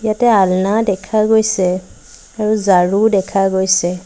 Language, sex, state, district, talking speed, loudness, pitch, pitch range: Assamese, female, Assam, Sonitpur, 120 wpm, -14 LUFS, 195 Hz, 190-215 Hz